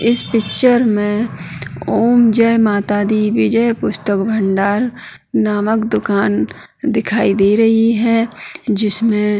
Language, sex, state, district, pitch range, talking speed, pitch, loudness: Hindi, female, Uttarakhand, Tehri Garhwal, 205-230 Hz, 115 wpm, 215 Hz, -15 LUFS